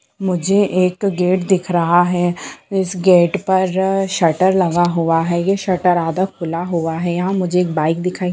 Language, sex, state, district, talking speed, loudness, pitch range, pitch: Hindi, female, Bihar, Begusarai, 185 wpm, -16 LUFS, 175-190 Hz, 180 Hz